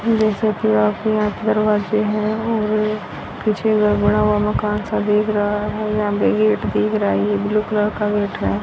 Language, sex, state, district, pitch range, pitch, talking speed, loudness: Hindi, female, Haryana, Rohtak, 205-215 Hz, 210 Hz, 210 wpm, -18 LUFS